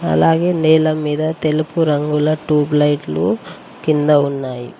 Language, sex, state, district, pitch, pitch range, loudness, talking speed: Telugu, female, Telangana, Mahabubabad, 150 Hz, 145-160 Hz, -16 LUFS, 115 wpm